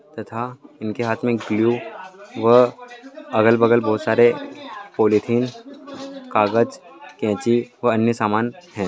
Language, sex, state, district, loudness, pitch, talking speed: Hindi, male, Bihar, Lakhisarai, -19 LUFS, 120 Hz, 120 wpm